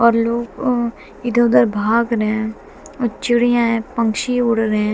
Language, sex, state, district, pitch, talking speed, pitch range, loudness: Hindi, female, Haryana, Jhajjar, 235 Hz, 170 wpm, 220-240 Hz, -18 LUFS